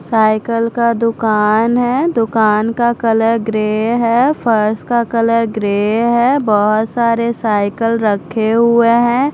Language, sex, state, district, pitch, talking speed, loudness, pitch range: Hindi, female, Punjab, Fazilka, 230 Hz, 130 wpm, -14 LUFS, 215-235 Hz